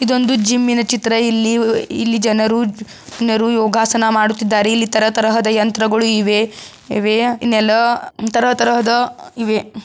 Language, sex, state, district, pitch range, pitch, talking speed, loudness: Kannada, female, Karnataka, Belgaum, 220-235 Hz, 225 Hz, 105 wpm, -15 LUFS